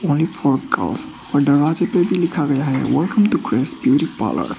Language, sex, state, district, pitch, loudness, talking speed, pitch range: Hindi, male, Arunachal Pradesh, Papum Pare, 155 Hz, -18 LUFS, 210 wpm, 140-175 Hz